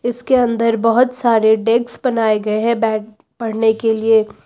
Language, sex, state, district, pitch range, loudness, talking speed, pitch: Hindi, female, Uttar Pradesh, Lucknow, 220-235 Hz, -16 LUFS, 160 wpm, 225 Hz